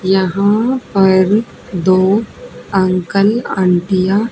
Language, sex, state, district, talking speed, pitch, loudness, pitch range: Hindi, female, Haryana, Charkhi Dadri, 85 wpm, 195 Hz, -14 LUFS, 185-210 Hz